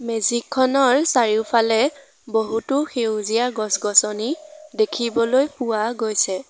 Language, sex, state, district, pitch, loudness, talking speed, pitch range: Assamese, female, Assam, Sonitpur, 235 Hz, -20 LUFS, 75 wpm, 220-275 Hz